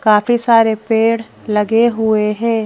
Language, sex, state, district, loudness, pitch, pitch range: Hindi, female, Madhya Pradesh, Bhopal, -14 LUFS, 225 Hz, 215-230 Hz